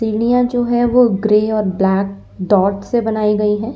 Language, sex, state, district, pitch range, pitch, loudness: Hindi, female, Uttar Pradesh, Lalitpur, 200-240 Hz, 215 Hz, -15 LUFS